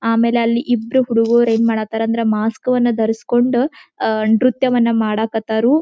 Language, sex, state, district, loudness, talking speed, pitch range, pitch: Kannada, female, Karnataka, Belgaum, -16 LUFS, 135 wpm, 225-245 Hz, 230 Hz